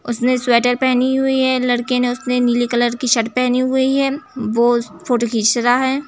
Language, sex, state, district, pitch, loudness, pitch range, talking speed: Hindi, female, Uttar Pradesh, Jalaun, 250 Hz, -16 LUFS, 240-260 Hz, 185 wpm